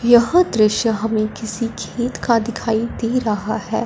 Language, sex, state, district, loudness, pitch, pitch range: Hindi, female, Punjab, Fazilka, -19 LUFS, 230 Hz, 220-240 Hz